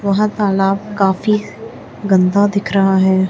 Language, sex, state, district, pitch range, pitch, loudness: Hindi, female, Chhattisgarh, Raipur, 190-205 Hz, 195 Hz, -15 LUFS